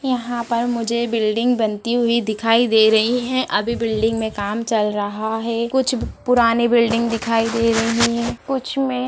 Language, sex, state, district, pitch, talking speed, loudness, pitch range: Hindi, female, Bihar, Madhepura, 230 Hz, 180 wpm, -19 LUFS, 225-240 Hz